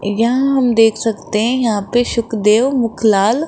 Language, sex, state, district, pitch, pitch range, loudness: Hindi, female, Rajasthan, Jaipur, 230 Hz, 215-245 Hz, -15 LUFS